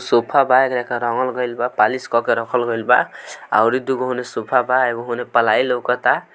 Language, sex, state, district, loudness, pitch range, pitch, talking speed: Hindi, male, Bihar, Gopalganj, -18 LUFS, 120-130 Hz, 125 Hz, 140 wpm